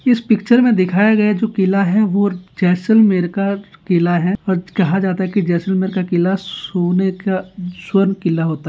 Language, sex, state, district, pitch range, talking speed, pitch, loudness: Hindi, male, Rajasthan, Nagaur, 180-200 Hz, 185 wpm, 190 Hz, -16 LUFS